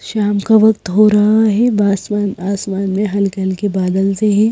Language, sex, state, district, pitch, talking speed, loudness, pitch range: Hindi, female, Madhya Pradesh, Bhopal, 205 Hz, 170 wpm, -14 LUFS, 195-215 Hz